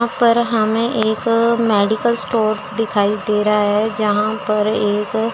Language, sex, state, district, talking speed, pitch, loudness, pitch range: Hindi, female, Chandigarh, Chandigarh, 145 wpm, 215 Hz, -17 LUFS, 210-230 Hz